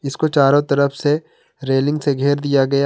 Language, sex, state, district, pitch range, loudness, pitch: Hindi, male, Jharkhand, Garhwa, 140-145 Hz, -17 LUFS, 140 Hz